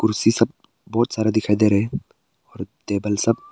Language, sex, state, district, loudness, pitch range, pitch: Hindi, male, Arunachal Pradesh, Papum Pare, -21 LUFS, 105-115 Hz, 110 Hz